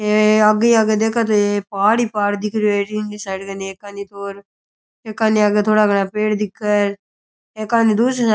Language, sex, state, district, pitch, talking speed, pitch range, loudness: Rajasthani, male, Rajasthan, Churu, 210 Hz, 195 wpm, 200-215 Hz, -17 LUFS